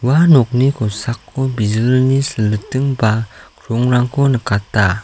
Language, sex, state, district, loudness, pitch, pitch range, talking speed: Garo, male, Meghalaya, South Garo Hills, -15 LUFS, 120 Hz, 105-135 Hz, 95 wpm